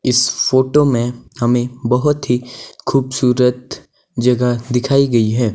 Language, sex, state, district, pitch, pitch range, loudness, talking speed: Hindi, male, Himachal Pradesh, Shimla, 125 Hz, 120-130 Hz, -16 LUFS, 120 wpm